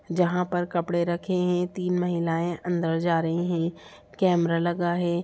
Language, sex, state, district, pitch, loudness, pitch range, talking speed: Hindi, female, Bihar, Sitamarhi, 175 Hz, -26 LUFS, 170-180 Hz, 185 wpm